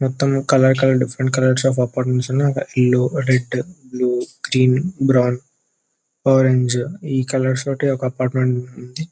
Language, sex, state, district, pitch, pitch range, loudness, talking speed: Telugu, male, Telangana, Nalgonda, 130 Hz, 125-135 Hz, -18 LUFS, 150 wpm